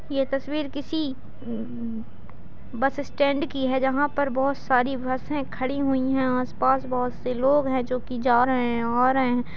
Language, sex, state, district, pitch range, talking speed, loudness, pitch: Hindi, female, Bihar, Madhepura, 250-275 Hz, 165 wpm, -25 LUFS, 260 Hz